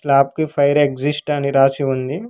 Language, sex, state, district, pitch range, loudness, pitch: Telugu, male, Telangana, Hyderabad, 135-150 Hz, -17 LUFS, 140 Hz